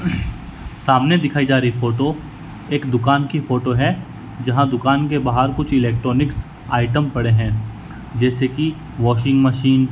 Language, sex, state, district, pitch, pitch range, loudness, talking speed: Hindi, male, Rajasthan, Bikaner, 130 Hz, 125-145 Hz, -18 LUFS, 145 wpm